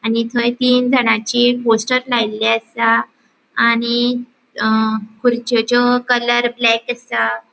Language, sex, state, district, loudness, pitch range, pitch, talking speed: Konkani, female, Goa, North and South Goa, -16 LUFS, 225-245 Hz, 240 Hz, 105 wpm